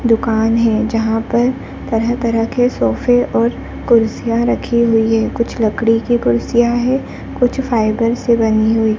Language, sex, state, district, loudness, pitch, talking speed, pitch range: Hindi, female, Madhya Pradesh, Dhar, -15 LUFS, 230 Hz, 160 wpm, 225-240 Hz